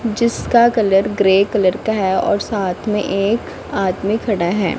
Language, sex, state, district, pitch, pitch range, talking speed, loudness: Hindi, female, Punjab, Pathankot, 205 Hz, 195-220 Hz, 165 wpm, -17 LUFS